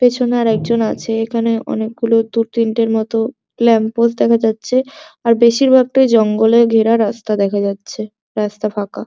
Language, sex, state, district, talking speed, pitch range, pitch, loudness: Bengali, male, West Bengal, Jhargram, 145 wpm, 220-235 Hz, 230 Hz, -15 LUFS